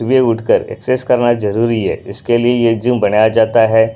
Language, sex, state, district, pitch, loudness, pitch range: Hindi, male, Punjab, Pathankot, 115 Hz, -14 LUFS, 110-120 Hz